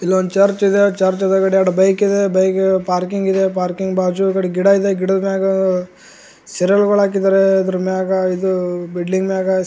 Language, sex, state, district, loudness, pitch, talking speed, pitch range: Kannada, male, Karnataka, Gulbarga, -16 LUFS, 190 Hz, 155 wpm, 185-195 Hz